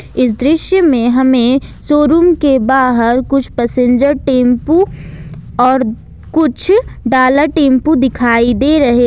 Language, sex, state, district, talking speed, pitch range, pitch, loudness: Hindi, female, Jharkhand, Ranchi, 110 wpm, 245-300 Hz, 265 Hz, -11 LUFS